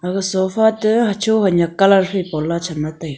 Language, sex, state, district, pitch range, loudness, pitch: Wancho, female, Arunachal Pradesh, Longding, 170-205 Hz, -17 LUFS, 190 Hz